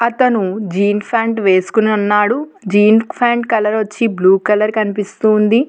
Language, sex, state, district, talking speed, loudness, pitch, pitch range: Telugu, female, Telangana, Hyderabad, 125 wpm, -14 LUFS, 215 Hz, 205-230 Hz